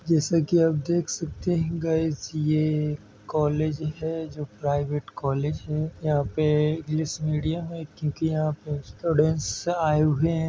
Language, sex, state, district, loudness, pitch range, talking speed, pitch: Hindi, male, Uttar Pradesh, Hamirpur, -26 LUFS, 150-160 Hz, 155 wpm, 155 Hz